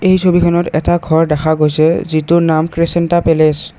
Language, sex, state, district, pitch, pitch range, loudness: Assamese, male, Assam, Kamrup Metropolitan, 165 Hz, 155-170 Hz, -13 LUFS